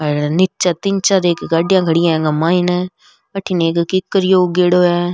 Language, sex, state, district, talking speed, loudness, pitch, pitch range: Rajasthani, female, Rajasthan, Nagaur, 165 wpm, -15 LUFS, 180 Hz, 170-185 Hz